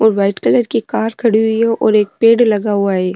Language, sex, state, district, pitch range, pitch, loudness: Rajasthani, female, Rajasthan, Nagaur, 205-230 Hz, 220 Hz, -14 LUFS